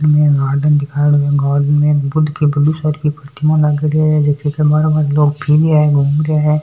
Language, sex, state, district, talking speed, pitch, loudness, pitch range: Marwari, female, Rajasthan, Nagaur, 215 wpm, 150 Hz, -14 LUFS, 145-150 Hz